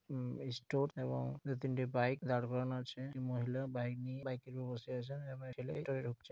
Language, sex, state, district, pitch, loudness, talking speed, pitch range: Bengali, male, West Bengal, Malda, 130 Hz, -41 LUFS, 230 wpm, 125-135 Hz